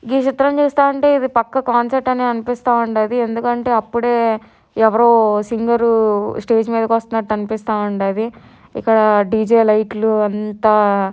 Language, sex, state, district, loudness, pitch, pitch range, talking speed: Telugu, female, Telangana, Nalgonda, -16 LUFS, 230 Hz, 215-240 Hz, 125 wpm